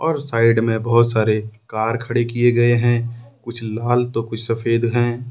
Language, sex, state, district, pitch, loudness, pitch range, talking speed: Hindi, male, Jharkhand, Ranchi, 115 Hz, -19 LUFS, 115-120 Hz, 180 wpm